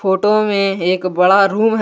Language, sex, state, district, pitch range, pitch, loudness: Hindi, male, Jharkhand, Garhwa, 185-210 Hz, 195 Hz, -14 LUFS